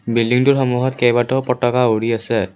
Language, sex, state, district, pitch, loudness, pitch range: Assamese, male, Assam, Kamrup Metropolitan, 120 Hz, -16 LUFS, 115-130 Hz